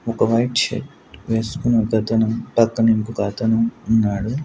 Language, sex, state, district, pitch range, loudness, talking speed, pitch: Telugu, male, Andhra Pradesh, Sri Satya Sai, 110-115 Hz, -19 LUFS, 120 wpm, 115 Hz